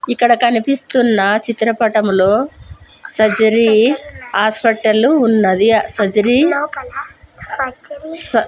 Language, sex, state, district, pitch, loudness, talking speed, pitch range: Telugu, female, Andhra Pradesh, Sri Satya Sai, 230 Hz, -14 LUFS, 55 wpm, 215-270 Hz